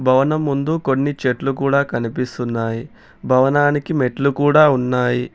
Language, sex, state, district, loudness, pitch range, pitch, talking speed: Telugu, male, Telangana, Hyderabad, -18 LUFS, 125-145 Hz, 135 Hz, 110 wpm